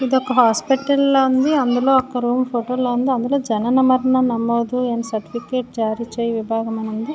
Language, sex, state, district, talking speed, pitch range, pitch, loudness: Telugu, female, Andhra Pradesh, Srikakulam, 175 wpm, 235-260 Hz, 245 Hz, -18 LUFS